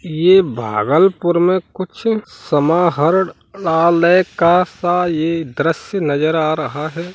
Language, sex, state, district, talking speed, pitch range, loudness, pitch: Hindi, male, Bihar, Bhagalpur, 110 wpm, 155-185 Hz, -16 LUFS, 170 Hz